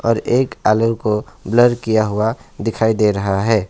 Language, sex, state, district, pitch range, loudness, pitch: Hindi, male, West Bengal, Alipurduar, 105-115 Hz, -17 LUFS, 110 Hz